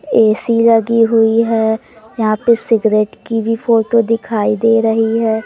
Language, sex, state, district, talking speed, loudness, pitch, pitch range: Hindi, female, Madhya Pradesh, Umaria, 155 wpm, -14 LUFS, 225 Hz, 220-230 Hz